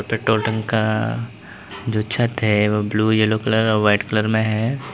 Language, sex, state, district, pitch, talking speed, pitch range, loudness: Hindi, male, Uttar Pradesh, Lalitpur, 110 Hz, 170 wpm, 105-110 Hz, -19 LUFS